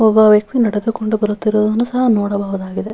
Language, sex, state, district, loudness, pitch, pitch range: Kannada, female, Karnataka, Bellary, -15 LUFS, 215 Hz, 210-225 Hz